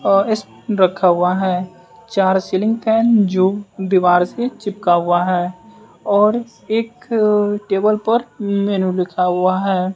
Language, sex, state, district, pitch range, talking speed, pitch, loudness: Hindi, male, Bihar, West Champaran, 185-220 Hz, 120 wpm, 195 Hz, -17 LUFS